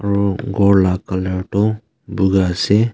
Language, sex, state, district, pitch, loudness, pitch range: Nagamese, male, Nagaland, Kohima, 100 Hz, -17 LUFS, 95-105 Hz